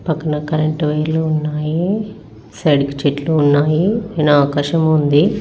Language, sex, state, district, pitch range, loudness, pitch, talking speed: Telugu, female, Telangana, Karimnagar, 145-160 Hz, -16 LUFS, 155 Hz, 120 wpm